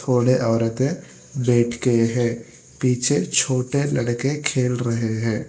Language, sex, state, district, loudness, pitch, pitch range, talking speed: Hindi, male, Telangana, Hyderabad, -21 LUFS, 125 Hz, 120-130 Hz, 130 wpm